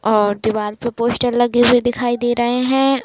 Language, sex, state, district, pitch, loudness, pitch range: Hindi, female, Uttar Pradesh, Jalaun, 240 Hz, -16 LUFS, 220-245 Hz